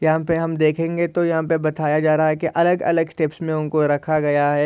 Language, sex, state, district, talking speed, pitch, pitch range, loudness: Hindi, male, Maharashtra, Solapur, 245 wpm, 155 Hz, 155-165 Hz, -20 LUFS